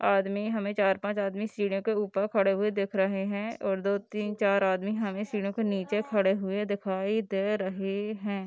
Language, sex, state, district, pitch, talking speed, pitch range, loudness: Hindi, female, Bihar, Darbhanga, 200 Hz, 190 wpm, 195-210 Hz, -29 LUFS